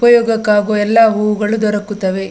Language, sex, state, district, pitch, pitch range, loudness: Kannada, female, Karnataka, Dakshina Kannada, 210 Hz, 210-225 Hz, -13 LUFS